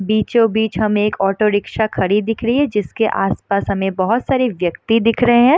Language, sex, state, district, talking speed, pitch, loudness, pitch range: Hindi, female, Bihar, Madhepura, 195 wpm, 220 Hz, -17 LUFS, 205-230 Hz